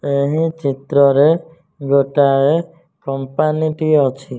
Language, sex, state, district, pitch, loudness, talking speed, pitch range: Odia, male, Odisha, Nuapada, 145 Hz, -16 LUFS, 80 wpm, 140-160 Hz